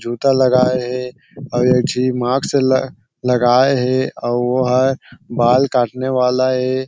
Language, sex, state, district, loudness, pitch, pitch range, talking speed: Chhattisgarhi, male, Chhattisgarh, Sarguja, -16 LUFS, 125 Hz, 125-130 Hz, 150 wpm